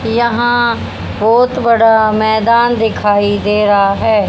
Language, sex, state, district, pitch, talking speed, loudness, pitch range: Hindi, female, Haryana, Jhajjar, 225 Hz, 110 wpm, -12 LUFS, 210-235 Hz